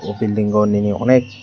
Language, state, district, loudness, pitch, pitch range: Kokborok, Tripura, West Tripura, -17 LUFS, 105 Hz, 105-120 Hz